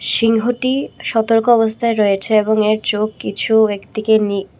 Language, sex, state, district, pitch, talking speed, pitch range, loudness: Bengali, female, Tripura, West Tripura, 220 Hz, 130 wpm, 210-225 Hz, -16 LUFS